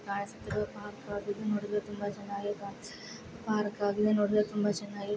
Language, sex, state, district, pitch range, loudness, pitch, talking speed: Kannada, female, Karnataka, Raichur, 200-210 Hz, -33 LUFS, 205 Hz, 35 wpm